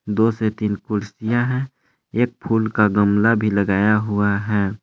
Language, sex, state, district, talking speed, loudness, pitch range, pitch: Hindi, male, Jharkhand, Palamu, 160 wpm, -20 LUFS, 105-115 Hz, 105 Hz